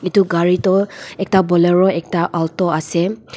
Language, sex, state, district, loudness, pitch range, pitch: Nagamese, female, Nagaland, Dimapur, -16 LUFS, 170-190 Hz, 180 Hz